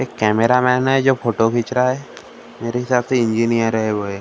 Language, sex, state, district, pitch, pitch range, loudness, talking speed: Hindi, male, Maharashtra, Gondia, 120 Hz, 115-125 Hz, -18 LUFS, 245 wpm